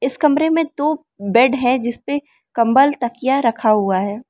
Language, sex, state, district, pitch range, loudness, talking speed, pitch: Hindi, female, Arunachal Pradesh, Lower Dibang Valley, 235-290 Hz, -17 LUFS, 180 wpm, 255 Hz